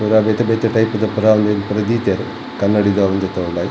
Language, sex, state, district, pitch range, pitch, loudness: Tulu, male, Karnataka, Dakshina Kannada, 100-110 Hz, 105 Hz, -16 LUFS